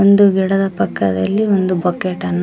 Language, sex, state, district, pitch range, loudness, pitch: Kannada, male, Karnataka, Koppal, 175-200 Hz, -16 LUFS, 190 Hz